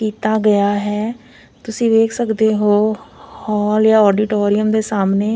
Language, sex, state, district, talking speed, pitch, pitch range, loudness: Punjabi, female, Punjab, Fazilka, 135 wpm, 215 Hz, 210-225 Hz, -16 LUFS